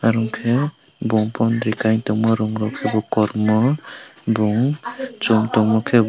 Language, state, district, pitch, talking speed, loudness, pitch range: Kokborok, Tripura, West Tripura, 110 Hz, 120 wpm, -20 LUFS, 110-120 Hz